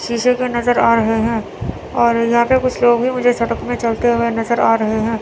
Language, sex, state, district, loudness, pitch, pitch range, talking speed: Hindi, female, Chandigarh, Chandigarh, -16 LUFS, 235 Hz, 230-245 Hz, 240 wpm